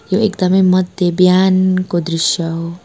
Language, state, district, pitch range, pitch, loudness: Nepali, West Bengal, Darjeeling, 170-185 Hz, 185 Hz, -14 LUFS